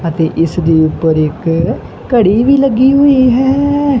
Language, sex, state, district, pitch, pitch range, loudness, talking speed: Punjabi, male, Punjab, Kapurthala, 220 Hz, 165-270 Hz, -11 LUFS, 150 wpm